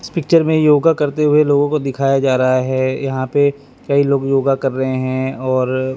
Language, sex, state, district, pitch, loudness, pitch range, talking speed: Hindi, male, Maharashtra, Mumbai Suburban, 135 Hz, -16 LUFS, 130-145 Hz, 210 wpm